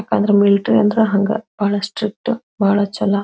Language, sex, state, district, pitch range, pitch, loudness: Kannada, female, Karnataka, Belgaum, 200-220 Hz, 205 Hz, -17 LUFS